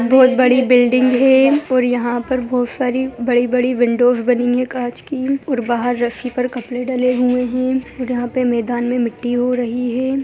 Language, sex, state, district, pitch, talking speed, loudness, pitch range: Hindi, female, Bihar, Begusarai, 250 Hz, 180 wpm, -16 LUFS, 245-255 Hz